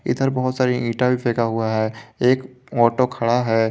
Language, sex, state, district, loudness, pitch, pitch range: Hindi, male, Jharkhand, Garhwa, -20 LUFS, 120 Hz, 115-125 Hz